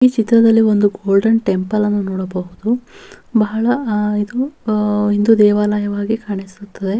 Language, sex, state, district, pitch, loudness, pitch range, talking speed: Kannada, female, Karnataka, Bellary, 210 Hz, -16 LUFS, 205-225 Hz, 120 wpm